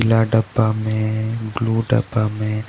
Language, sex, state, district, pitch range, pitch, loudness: Hindi, male, Jharkhand, Deoghar, 110-115 Hz, 110 Hz, -20 LUFS